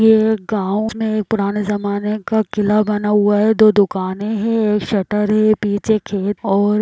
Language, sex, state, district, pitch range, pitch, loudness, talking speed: Hindi, female, Bihar, Samastipur, 205-215 Hz, 210 Hz, -17 LUFS, 175 wpm